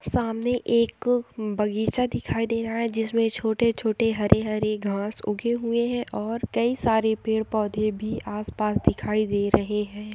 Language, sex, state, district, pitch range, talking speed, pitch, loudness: Hindi, female, Chhattisgarh, Sukma, 210-230 Hz, 160 wpm, 220 Hz, -25 LUFS